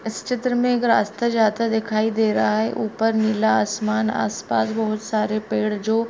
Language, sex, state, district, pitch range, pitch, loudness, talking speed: Hindi, female, Bihar, Bhagalpur, 215-225 Hz, 220 Hz, -21 LUFS, 185 wpm